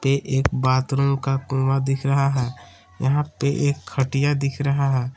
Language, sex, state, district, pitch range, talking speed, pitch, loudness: Hindi, male, Jharkhand, Palamu, 135-140 Hz, 175 wpm, 135 Hz, -22 LUFS